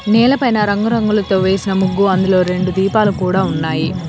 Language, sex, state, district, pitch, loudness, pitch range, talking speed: Telugu, female, Telangana, Komaram Bheem, 190 Hz, -15 LUFS, 185-210 Hz, 145 wpm